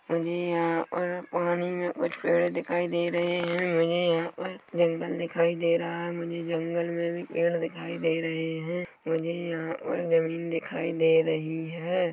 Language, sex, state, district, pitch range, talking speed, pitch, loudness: Hindi, male, Chhattisgarh, Korba, 165-175 Hz, 175 wpm, 170 Hz, -28 LUFS